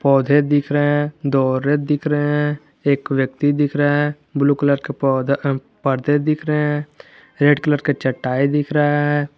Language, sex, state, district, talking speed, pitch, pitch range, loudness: Hindi, male, Jharkhand, Garhwa, 185 wpm, 145 Hz, 140-145 Hz, -18 LUFS